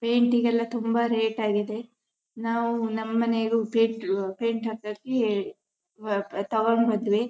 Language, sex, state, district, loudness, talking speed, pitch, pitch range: Kannada, female, Karnataka, Shimoga, -26 LUFS, 105 wpm, 225 Hz, 215-230 Hz